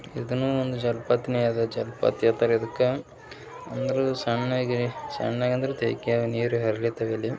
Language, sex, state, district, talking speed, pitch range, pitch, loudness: Kannada, male, Karnataka, Bijapur, 105 wpm, 115-125 Hz, 120 Hz, -26 LUFS